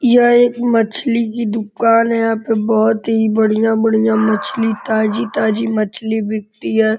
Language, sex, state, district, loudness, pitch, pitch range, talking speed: Hindi, male, Uttar Pradesh, Gorakhpur, -15 LUFS, 220 Hz, 220-230 Hz, 145 wpm